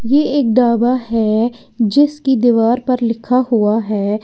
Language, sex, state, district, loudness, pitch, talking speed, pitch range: Hindi, female, Uttar Pradesh, Lalitpur, -15 LUFS, 240 Hz, 155 wpm, 225-255 Hz